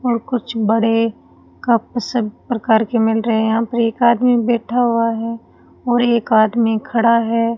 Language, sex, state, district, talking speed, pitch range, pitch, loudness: Hindi, female, Rajasthan, Bikaner, 175 wpm, 225-240 Hz, 230 Hz, -17 LUFS